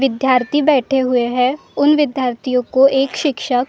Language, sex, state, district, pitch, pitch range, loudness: Hindi, female, Maharashtra, Gondia, 265 Hz, 250-280 Hz, -16 LUFS